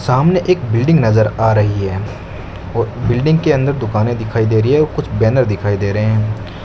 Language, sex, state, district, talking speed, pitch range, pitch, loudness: Hindi, male, Rajasthan, Bikaner, 200 wpm, 105-130 Hz, 110 Hz, -15 LUFS